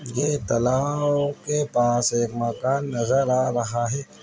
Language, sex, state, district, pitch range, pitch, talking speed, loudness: Hindi, male, Uttar Pradesh, Etah, 120-145 Hz, 130 Hz, 140 wpm, -23 LUFS